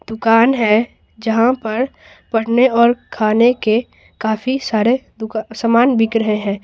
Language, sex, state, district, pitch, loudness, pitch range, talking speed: Hindi, female, Bihar, Patna, 225 Hz, -16 LUFS, 220-240 Hz, 135 wpm